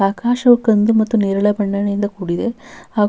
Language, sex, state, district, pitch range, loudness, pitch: Kannada, female, Karnataka, Bellary, 200-235 Hz, -16 LUFS, 210 Hz